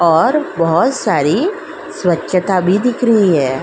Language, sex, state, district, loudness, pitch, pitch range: Hindi, female, Uttar Pradesh, Jalaun, -14 LUFS, 180 Hz, 165-210 Hz